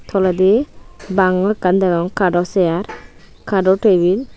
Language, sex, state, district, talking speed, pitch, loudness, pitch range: Chakma, female, Tripura, West Tripura, 125 wpm, 190 Hz, -16 LUFS, 180-195 Hz